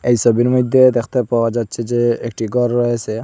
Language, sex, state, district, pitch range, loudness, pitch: Bengali, male, Assam, Hailakandi, 115-125 Hz, -16 LUFS, 120 Hz